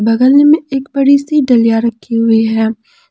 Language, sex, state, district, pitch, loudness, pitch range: Hindi, female, Jharkhand, Palamu, 250 Hz, -11 LUFS, 225-280 Hz